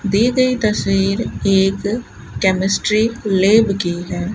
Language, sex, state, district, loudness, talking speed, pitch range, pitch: Hindi, female, Rajasthan, Bikaner, -17 LUFS, 110 wpm, 190-220 Hz, 195 Hz